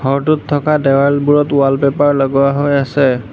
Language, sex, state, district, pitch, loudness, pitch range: Assamese, male, Assam, Hailakandi, 140 Hz, -13 LUFS, 135-145 Hz